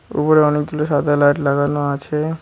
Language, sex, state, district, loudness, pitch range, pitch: Bengali, male, West Bengal, Cooch Behar, -17 LUFS, 145-150 Hz, 145 Hz